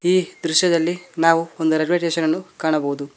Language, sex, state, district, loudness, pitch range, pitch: Kannada, male, Karnataka, Koppal, -19 LUFS, 160-175 Hz, 165 Hz